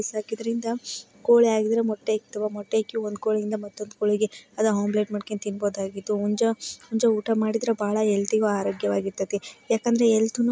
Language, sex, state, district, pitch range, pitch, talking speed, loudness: Kannada, female, Karnataka, Bijapur, 205-225 Hz, 215 Hz, 155 wpm, -25 LUFS